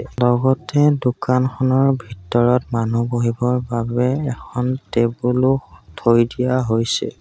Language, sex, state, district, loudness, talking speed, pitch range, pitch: Assamese, male, Assam, Sonitpur, -19 LUFS, 100 wpm, 120-130 Hz, 125 Hz